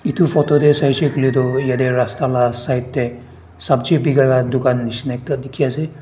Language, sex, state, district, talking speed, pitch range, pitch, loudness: Nagamese, male, Nagaland, Dimapur, 180 wpm, 125-145 Hz, 130 Hz, -17 LUFS